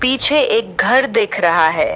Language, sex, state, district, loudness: Hindi, female, Uttar Pradesh, Shamli, -14 LUFS